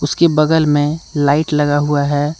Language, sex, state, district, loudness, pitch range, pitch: Hindi, male, Jharkhand, Deoghar, -15 LUFS, 145-155 Hz, 150 Hz